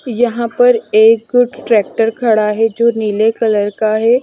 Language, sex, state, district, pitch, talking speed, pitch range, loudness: Hindi, female, Punjab, Fazilka, 225 Hz, 155 wpm, 215-240 Hz, -13 LUFS